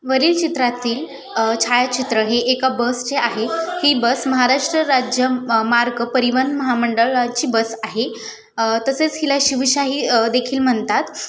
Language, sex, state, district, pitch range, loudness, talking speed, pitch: Marathi, female, Maharashtra, Aurangabad, 235-270 Hz, -17 LUFS, 120 wpm, 250 Hz